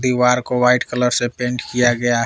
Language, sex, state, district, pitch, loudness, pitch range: Hindi, male, Jharkhand, Palamu, 125 Hz, -17 LUFS, 120-125 Hz